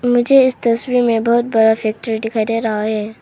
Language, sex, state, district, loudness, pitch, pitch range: Hindi, female, Arunachal Pradesh, Papum Pare, -15 LUFS, 225 Hz, 220-245 Hz